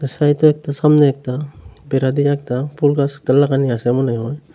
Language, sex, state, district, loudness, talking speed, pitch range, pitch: Bengali, male, Tripura, Unakoti, -16 LUFS, 170 wpm, 130-145 Hz, 140 Hz